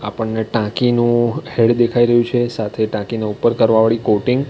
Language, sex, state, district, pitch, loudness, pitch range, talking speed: Gujarati, male, Gujarat, Valsad, 115 Hz, -16 LUFS, 110-120 Hz, 175 wpm